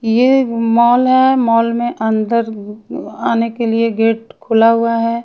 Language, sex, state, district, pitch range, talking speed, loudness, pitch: Hindi, female, Haryana, Charkhi Dadri, 225-235 Hz, 150 wpm, -14 LUFS, 230 Hz